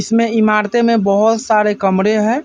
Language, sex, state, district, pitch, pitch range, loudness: Hindi, male, Bihar, Vaishali, 215 Hz, 210-230 Hz, -14 LUFS